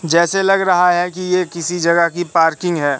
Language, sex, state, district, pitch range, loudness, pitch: Hindi, male, Madhya Pradesh, Katni, 170-180 Hz, -15 LUFS, 175 Hz